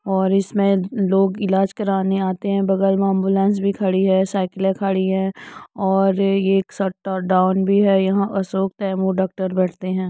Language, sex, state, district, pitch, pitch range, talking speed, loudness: Hindi, female, Uttar Pradesh, Muzaffarnagar, 195 Hz, 190-195 Hz, 170 wpm, -19 LUFS